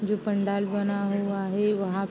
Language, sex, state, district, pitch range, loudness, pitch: Hindi, female, Uttar Pradesh, Jalaun, 200-205 Hz, -27 LUFS, 200 Hz